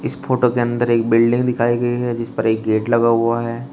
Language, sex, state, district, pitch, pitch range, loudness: Hindi, male, Uttar Pradesh, Shamli, 120 Hz, 115-120 Hz, -17 LUFS